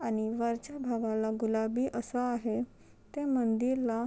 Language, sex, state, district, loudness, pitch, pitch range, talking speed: Marathi, female, Maharashtra, Chandrapur, -32 LUFS, 235 Hz, 225-250 Hz, 130 wpm